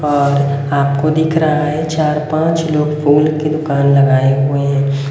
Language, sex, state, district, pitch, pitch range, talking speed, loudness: Hindi, female, Haryana, Rohtak, 150 Hz, 140-155 Hz, 175 wpm, -14 LUFS